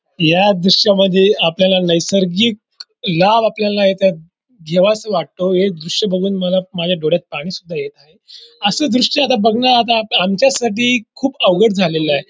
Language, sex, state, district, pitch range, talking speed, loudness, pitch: Marathi, male, Maharashtra, Dhule, 180-235 Hz, 135 wpm, -14 LUFS, 195 Hz